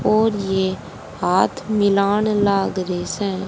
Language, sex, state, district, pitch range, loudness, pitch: Hindi, female, Haryana, Rohtak, 190-205 Hz, -19 LUFS, 200 Hz